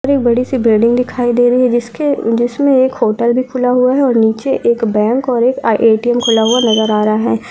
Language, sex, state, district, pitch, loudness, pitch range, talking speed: Hindi, female, Uttarakhand, Uttarkashi, 240 Hz, -13 LUFS, 230-255 Hz, 250 wpm